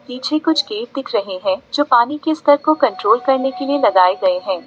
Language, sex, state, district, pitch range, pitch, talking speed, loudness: Hindi, female, Uttar Pradesh, Lalitpur, 250-295 Hz, 275 Hz, 230 wpm, -16 LUFS